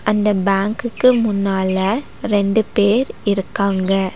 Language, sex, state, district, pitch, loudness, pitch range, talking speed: Tamil, female, Tamil Nadu, Nilgiris, 205 Hz, -17 LUFS, 195-220 Hz, 85 wpm